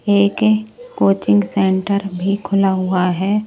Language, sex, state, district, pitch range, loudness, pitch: Hindi, male, Delhi, New Delhi, 185-205 Hz, -17 LUFS, 195 Hz